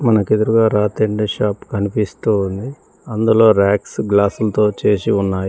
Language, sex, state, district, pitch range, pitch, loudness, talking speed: Telugu, male, Telangana, Mahabubabad, 100-110 Hz, 105 Hz, -16 LUFS, 110 wpm